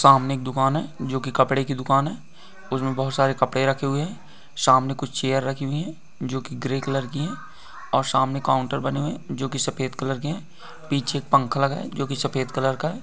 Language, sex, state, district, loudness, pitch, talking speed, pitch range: Hindi, male, Uttar Pradesh, Gorakhpur, -24 LUFS, 135 Hz, 220 wpm, 135-145 Hz